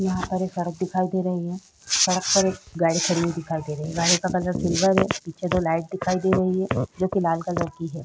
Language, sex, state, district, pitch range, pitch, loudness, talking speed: Hindi, female, Uttar Pradesh, Jyotiba Phule Nagar, 170-185 Hz, 180 Hz, -23 LUFS, 260 wpm